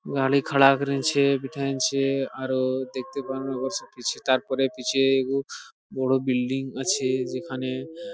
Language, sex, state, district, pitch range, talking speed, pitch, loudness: Bengali, male, West Bengal, Purulia, 130-135 Hz, 90 wpm, 135 Hz, -25 LUFS